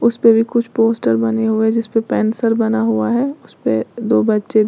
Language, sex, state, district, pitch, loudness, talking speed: Hindi, female, Uttar Pradesh, Lalitpur, 220 Hz, -16 LUFS, 245 wpm